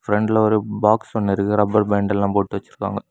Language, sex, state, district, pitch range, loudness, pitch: Tamil, male, Tamil Nadu, Kanyakumari, 100-105 Hz, -19 LUFS, 105 Hz